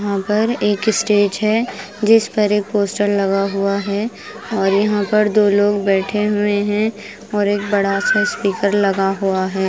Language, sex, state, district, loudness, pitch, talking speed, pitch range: Hindi, female, Himachal Pradesh, Shimla, -17 LUFS, 205 Hz, 175 wpm, 200-210 Hz